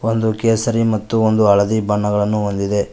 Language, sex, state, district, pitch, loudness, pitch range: Kannada, male, Karnataka, Koppal, 110 Hz, -16 LUFS, 105-110 Hz